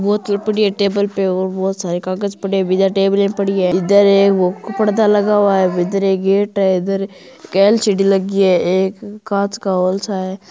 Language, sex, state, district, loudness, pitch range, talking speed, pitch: Hindi, male, Rajasthan, Churu, -15 LUFS, 190-200 Hz, 180 wpm, 195 Hz